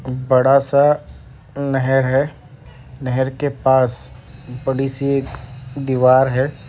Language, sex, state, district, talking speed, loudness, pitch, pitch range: Hindi, male, Uttar Pradesh, Deoria, 110 wpm, -17 LUFS, 130 Hz, 130-135 Hz